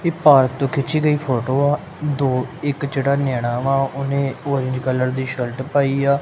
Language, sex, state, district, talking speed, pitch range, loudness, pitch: Punjabi, male, Punjab, Kapurthala, 185 wpm, 130-140 Hz, -19 LUFS, 135 Hz